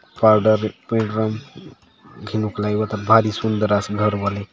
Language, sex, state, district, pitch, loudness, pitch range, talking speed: Halbi, male, Chhattisgarh, Bastar, 110 Hz, -19 LUFS, 105-110 Hz, 135 wpm